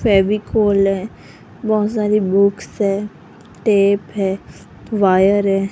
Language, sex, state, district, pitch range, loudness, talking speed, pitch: Hindi, female, Rajasthan, Jaipur, 195-210 Hz, -17 LUFS, 105 wpm, 200 Hz